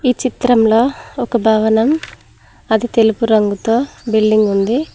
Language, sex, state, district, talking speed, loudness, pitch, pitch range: Telugu, female, Telangana, Mahabubabad, 110 wpm, -14 LUFS, 225 Hz, 220-250 Hz